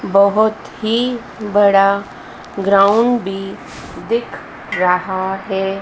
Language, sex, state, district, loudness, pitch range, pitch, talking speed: Hindi, female, Madhya Pradesh, Dhar, -16 LUFS, 195-220 Hz, 200 Hz, 80 wpm